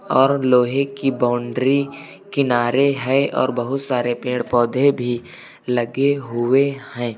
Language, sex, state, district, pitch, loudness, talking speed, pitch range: Hindi, male, Uttar Pradesh, Lucknow, 130 Hz, -19 LUFS, 125 wpm, 120-140 Hz